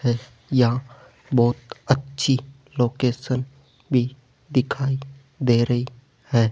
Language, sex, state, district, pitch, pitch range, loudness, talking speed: Hindi, male, Rajasthan, Jaipur, 130 Hz, 120-135 Hz, -23 LUFS, 90 wpm